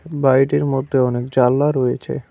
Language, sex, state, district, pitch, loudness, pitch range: Bengali, male, West Bengal, Cooch Behar, 135 Hz, -17 LUFS, 130-145 Hz